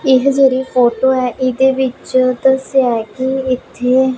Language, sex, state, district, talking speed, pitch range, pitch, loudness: Punjabi, female, Punjab, Pathankot, 145 wpm, 255-265 Hz, 260 Hz, -14 LUFS